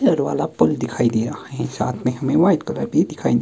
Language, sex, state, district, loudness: Hindi, male, Himachal Pradesh, Shimla, -20 LUFS